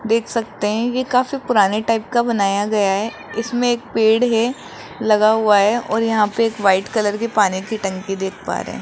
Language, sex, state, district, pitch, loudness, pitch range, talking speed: Hindi, male, Rajasthan, Jaipur, 220 Hz, -18 LUFS, 200-230 Hz, 220 wpm